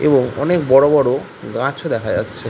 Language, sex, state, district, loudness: Bengali, male, West Bengal, Kolkata, -16 LUFS